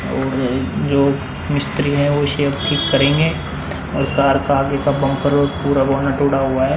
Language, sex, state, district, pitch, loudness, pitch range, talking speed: Hindi, male, Uttar Pradesh, Muzaffarnagar, 140 Hz, -17 LUFS, 135-140 Hz, 170 wpm